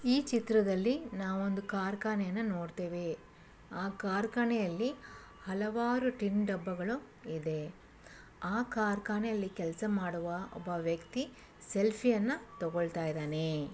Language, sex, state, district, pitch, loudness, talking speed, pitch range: Kannada, female, Karnataka, Bellary, 200 Hz, -35 LUFS, 95 wpm, 175-225 Hz